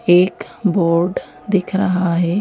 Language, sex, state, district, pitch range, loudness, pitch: Hindi, female, Madhya Pradesh, Bhopal, 175-195 Hz, -17 LUFS, 180 Hz